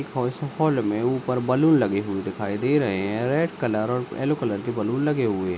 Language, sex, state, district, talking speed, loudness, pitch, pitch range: Hindi, male, Rajasthan, Nagaur, 205 wpm, -24 LUFS, 125 Hz, 105-140 Hz